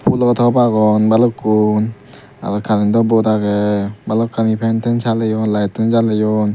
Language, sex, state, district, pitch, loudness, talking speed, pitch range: Chakma, male, Tripura, Dhalai, 110 Hz, -15 LUFS, 130 wpm, 105-115 Hz